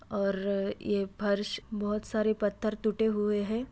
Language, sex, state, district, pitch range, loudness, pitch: Hindi, female, Bihar, East Champaran, 200-215 Hz, -31 LUFS, 210 Hz